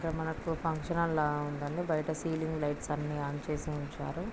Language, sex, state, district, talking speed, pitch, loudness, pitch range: Telugu, female, Andhra Pradesh, Krishna, 180 wpm, 155 Hz, -34 LUFS, 150-165 Hz